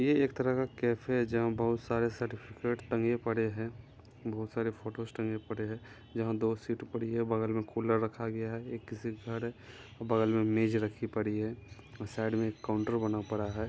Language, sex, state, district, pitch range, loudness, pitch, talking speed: Hindi, male, Bihar, Muzaffarpur, 110-115 Hz, -34 LUFS, 115 Hz, 215 wpm